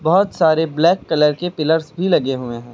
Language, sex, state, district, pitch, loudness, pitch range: Hindi, male, Uttar Pradesh, Lucknow, 160 Hz, -17 LUFS, 150-175 Hz